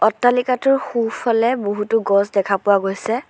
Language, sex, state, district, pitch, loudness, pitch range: Assamese, female, Assam, Sonitpur, 225 Hz, -18 LUFS, 200-245 Hz